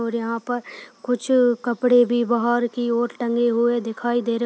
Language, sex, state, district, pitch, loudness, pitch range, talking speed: Hindi, female, Uttar Pradesh, Deoria, 240 Hz, -21 LUFS, 235-245 Hz, 200 wpm